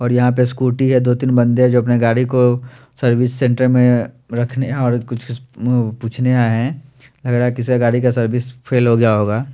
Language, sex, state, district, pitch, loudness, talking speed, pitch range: Hindi, male, Chandigarh, Chandigarh, 125 Hz, -16 LUFS, 190 wpm, 120-125 Hz